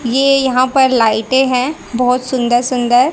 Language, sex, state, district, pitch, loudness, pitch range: Hindi, female, Haryana, Rohtak, 255 Hz, -13 LUFS, 245-265 Hz